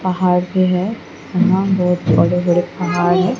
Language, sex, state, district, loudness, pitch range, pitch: Hindi, female, Odisha, Sambalpur, -16 LUFS, 180-185 Hz, 180 Hz